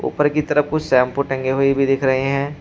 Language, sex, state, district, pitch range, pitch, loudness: Hindi, male, Uttar Pradesh, Shamli, 135-150 Hz, 135 Hz, -18 LUFS